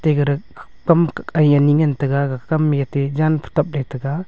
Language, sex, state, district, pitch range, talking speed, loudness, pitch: Wancho, male, Arunachal Pradesh, Longding, 140-155 Hz, 180 wpm, -18 LUFS, 145 Hz